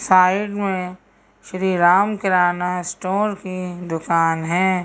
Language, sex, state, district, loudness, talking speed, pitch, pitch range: Hindi, female, Madhya Pradesh, Bhopal, -19 LUFS, 110 wpm, 185 Hz, 175-190 Hz